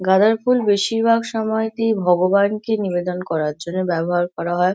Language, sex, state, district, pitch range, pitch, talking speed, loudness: Bengali, female, West Bengal, Kolkata, 175-220 Hz, 195 Hz, 140 wpm, -19 LUFS